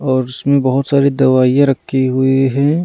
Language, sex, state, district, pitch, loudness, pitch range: Hindi, male, Punjab, Pathankot, 135 Hz, -13 LUFS, 130-140 Hz